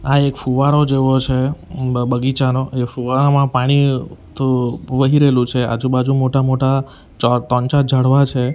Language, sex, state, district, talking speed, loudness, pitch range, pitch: Gujarati, male, Gujarat, Valsad, 145 wpm, -16 LUFS, 125-135 Hz, 130 Hz